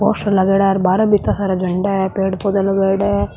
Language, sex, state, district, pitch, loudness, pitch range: Marwari, female, Rajasthan, Nagaur, 195 Hz, -16 LUFS, 190-200 Hz